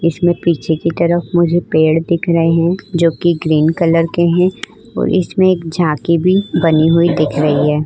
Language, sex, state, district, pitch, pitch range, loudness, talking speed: Hindi, female, Uttar Pradesh, Budaun, 170 Hz, 160-175 Hz, -14 LUFS, 185 wpm